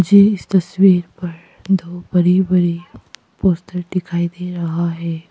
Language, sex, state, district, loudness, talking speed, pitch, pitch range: Hindi, female, Arunachal Pradesh, Papum Pare, -17 LUFS, 135 wpm, 175 Hz, 170-185 Hz